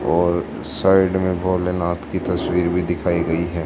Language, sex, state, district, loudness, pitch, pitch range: Hindi, female, Haryana, Charkhi Dadri, -19 LUFS, 85 Hz, 85-90 Hz